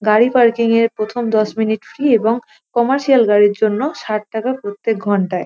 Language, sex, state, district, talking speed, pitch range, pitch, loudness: Bengali, female, West Bengal, North 24 Parganas, 175 wpm, 215-240 Hz, 225 Hz, -16 LUFS